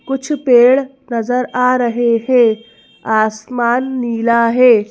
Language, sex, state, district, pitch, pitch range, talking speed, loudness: Hindi, female, Madhya Pradesh, Bhopal, 245 Hz, 230-255 Hz, 110 wpm, -14 LUFS